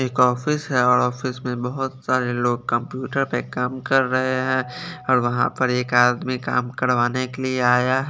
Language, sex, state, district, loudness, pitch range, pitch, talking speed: Hindi, male, Chandigarh, Chandigarh, -21 LUFS, 125-130 Hz, 125 Hz, 190 wpm